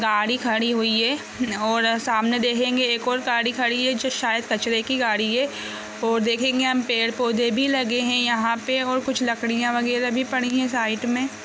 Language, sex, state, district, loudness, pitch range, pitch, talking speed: Hindi, female, Bihar, Gopalganj, -22 LUFS, 230-255 Hz, 240 Hz, 195 wpm